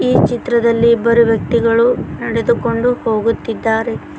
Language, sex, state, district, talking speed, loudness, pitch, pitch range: Kannada, female, Karnataka, Koppal, 85 wpm, -15 LUFS, 235 Hz, 230-235 Hz